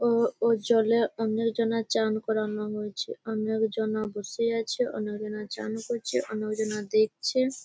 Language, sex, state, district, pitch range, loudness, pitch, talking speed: Bengali, female, West Bengal, Malda, 215-230 Hz, -28 LUFS, 220 Hz, 150 wpm